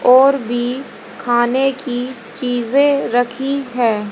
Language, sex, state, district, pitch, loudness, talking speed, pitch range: Hindi, female, Haryana, Charkhi Dadri, 250 Hz, -17 LUFS, 100 wpm, 240-270 Hz